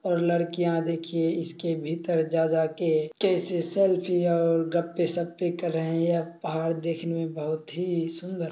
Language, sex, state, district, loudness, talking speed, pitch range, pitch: Hindi, male, Bihar, Samastipur, -27 LUFS, 150 wpm, 165-175 Hz, 170 Hz